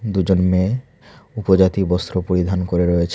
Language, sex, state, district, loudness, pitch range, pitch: Bengali, male, Tripura, Unakoti, -18 LUFS, 90-105 Hz, 95 Hz